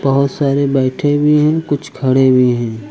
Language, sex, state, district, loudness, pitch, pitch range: Hindi, male, Uttar Pradesh, Lucknow, -14 LUFS, 135 Hz, 130-145 Hz